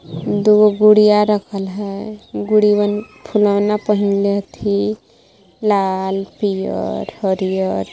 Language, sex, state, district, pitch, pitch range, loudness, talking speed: Magahi, female, Jharkhand, Palamu, 205 Hz, 195-210 Hz, -16 LUFS, 85 wpm